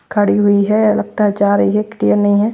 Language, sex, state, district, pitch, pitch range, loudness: Hindi, female, Bihar, West Champaran, 205 Hz, 200-210 Hz, -14 LUFS